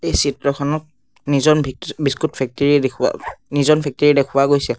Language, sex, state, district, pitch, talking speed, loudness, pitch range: Assamese, male, Assam, Sonitpur, 140 Hz, 125 wpm, -18 LUFS, 140-150 Hz